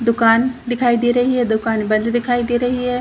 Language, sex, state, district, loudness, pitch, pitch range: Hindi, female, Chhattisgarh, Rajnandgaon, -17 LUFS, 240 Hz, 230-245 Hz